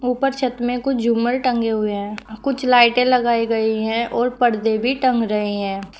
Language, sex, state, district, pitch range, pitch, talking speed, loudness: Hindi, female, Uttar Pradesh, Shamli, 220-250 Hz, 235 Hz, 190 wpm, -19 LUFS